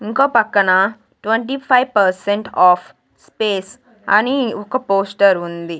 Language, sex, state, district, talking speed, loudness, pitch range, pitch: Telugu, female, Andhra Pradesh, Sri Satya Sai, 115 wpm, -16 LUFS, 195-235 Hz, 210 Hz